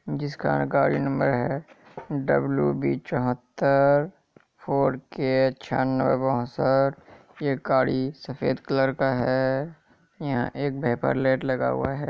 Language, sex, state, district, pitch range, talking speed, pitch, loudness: Hindi, male, Bihar, Kishanganj, 125-140 Hz, 110 wpm, 130 Hz, -25 LUFS